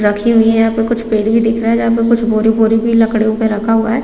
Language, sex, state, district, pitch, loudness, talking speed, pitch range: Hindi, female, Chhattisgarh, Raigarh, 225 Hz, -13 LUFS, 325 wpm, 220-230 Hz